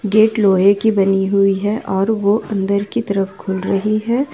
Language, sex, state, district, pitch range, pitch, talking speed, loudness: Hindi, female, Jharkhand, Ranchi, 195-215 Hz, 200 Hz, 195 wpm, -16 LUFS